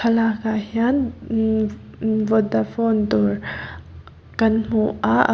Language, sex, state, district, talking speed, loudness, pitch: Mizo, female, Mizoram, Aizawl, 100 wpm, -21 LUFS, 220 Hz